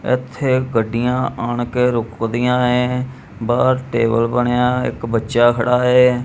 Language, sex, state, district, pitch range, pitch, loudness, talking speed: Punjabi, male, Punjab, Kapurthala, 115-125 Hz, 125 Hz, -17 LUFS, 135 wpm